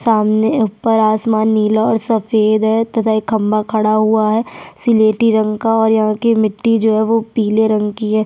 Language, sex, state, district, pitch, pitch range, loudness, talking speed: Hindi, female, Chhattisgarh, Sukma, 220 Hz, 215-225 Hz, -14 LUFS, 190 wpm